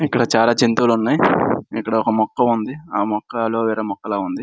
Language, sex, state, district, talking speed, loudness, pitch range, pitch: Telugu, male, Andhra Pradesh, Srikakulam, 175 wpm, -18 LUFS, 110-120 Hz, 115 Hz